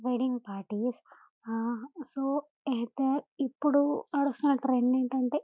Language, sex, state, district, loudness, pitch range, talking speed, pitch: Telugu, female, Telangana, Karimnagar, -30 LUFS, 245-285 Hz, 110 wpm, 265 Hz